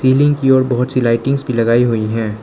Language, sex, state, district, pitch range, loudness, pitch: Hindi, male, Arunachal Pradesh, Lower Dibang Valley, 115-135 Hz, -14 LUFS, 125 Hz